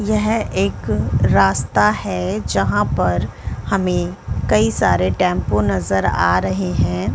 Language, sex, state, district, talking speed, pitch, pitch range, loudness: Hindi, female, Chhattisgarh, Bilaspur, 115 wpm, 100 Hz, 90-105 Hz, -18 LUFS